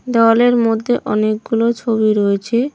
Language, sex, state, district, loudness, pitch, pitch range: Bengali, female, West Bengal, Cooch Behar, -15 LUFS, 225 Hz, 215-235 Hz